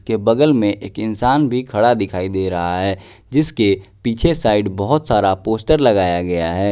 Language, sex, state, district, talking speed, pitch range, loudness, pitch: Hindi, male, Bihar, West Champaran, 180 wpm, 95-120 Hz, -17 LUFS, 105 Hz